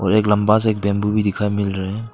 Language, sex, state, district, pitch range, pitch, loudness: Hindi, male, Arunachal Pradesh, Papum Pare, 100-105 Hz, 105 Hz, -18 LUFS